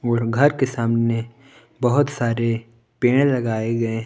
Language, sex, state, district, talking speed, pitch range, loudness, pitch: Hindi, male, Jharkhand, Palamu, 135 wpm, 115-125 Hz, -20 LUFS, 115 Hz